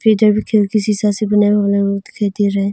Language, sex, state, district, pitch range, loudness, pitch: Hindi, female, Arunachal Pradesh, Longding, 200-215 Hz, -15 LUFS, 210 Hz